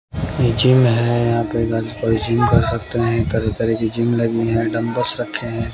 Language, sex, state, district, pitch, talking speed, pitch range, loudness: Hindi, male, Haryana, Jhajjar, 115 Hz, 145 wpm, 115-120 Hz, -18 LUFS